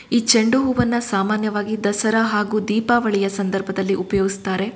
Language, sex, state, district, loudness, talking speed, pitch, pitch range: Kannada, female, Karnataka, Shimoga, -19 LUFS, 325 wpm, 210 Hz, 195-225 Hz